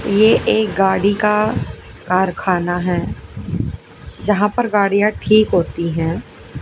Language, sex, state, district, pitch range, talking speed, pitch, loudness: Hindi, female, Haryana, Jhajjar, 175-210 Hz, 110 wpm, 195 Hz, -17 LUFS